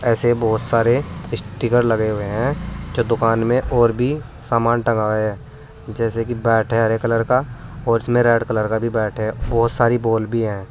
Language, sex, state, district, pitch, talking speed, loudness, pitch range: Hindi, male, Uttar Pradesh, Saharanpur, 115 Hz, 195 wpm, -19 LUFS, 110-120 Hz